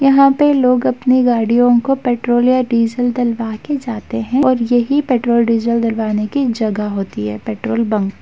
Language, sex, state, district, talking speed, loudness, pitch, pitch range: Hindi, female, Uttar Pradesh, Etah, 175 wpm, -15 LUFS, 240 Hz, 225-255 Hz